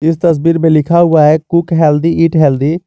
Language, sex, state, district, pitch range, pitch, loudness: Hindi, male, Jharkhand, Garhwa, 155-165 Hz, 165 Hz, -10 LUFS